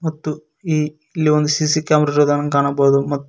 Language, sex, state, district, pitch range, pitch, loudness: Kannada, male, Karnataka, Koppal, 145-155 Hz, 150 Hz, -17 LUFS